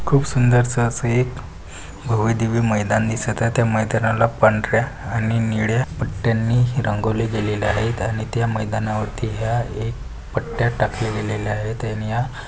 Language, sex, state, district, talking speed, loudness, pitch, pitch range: Marathi, male, Maharashtra, Pune, 135 wpm, -21 LUFS, 115 Hz, 110-120 Hz